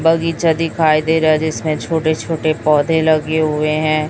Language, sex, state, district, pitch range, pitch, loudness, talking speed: Hindi, female, Chhattisgarh, Raipur, 155-160 Hz, 160 Hz, -16 LUFS, 160 wpm